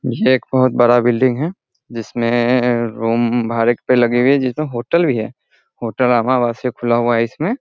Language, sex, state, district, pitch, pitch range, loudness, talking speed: Hindi, male, Bihar, Sitamarhi, 120 Hz, 120-130 Hz, -16 LUFS, 175 wpm